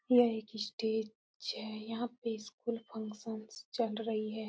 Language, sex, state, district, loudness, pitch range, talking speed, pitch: Hindi, female, Uttar Pradesh, Etah, -37 LUFS, 220-230 Hz, 145 wpm, 220 Hz